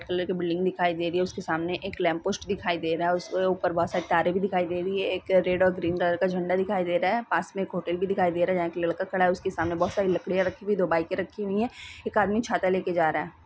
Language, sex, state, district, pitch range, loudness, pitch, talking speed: Hindi, female, Bihar, East Champaran, 175-190 Hz, -27 LUFS, 180 Hz, 320 wpm